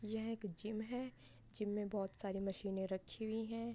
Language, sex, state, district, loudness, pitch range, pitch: Hindi, female, Uttar Pradesh, Budaun, -44 LUFS, 195-220 Hz, 210 Hz